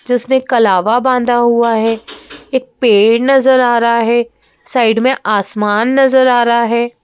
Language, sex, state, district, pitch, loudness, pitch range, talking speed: Hindi, female, Madhya Pradesh, Bhopal, 240 Hz, -12 LUFS, 230-255 Hz, 155 wpm